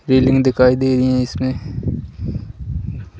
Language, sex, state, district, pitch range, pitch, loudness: Hindi, male, Madhya Pradesh, Bhopal, 120-130 Hz, 130 Hz, -18 LUFS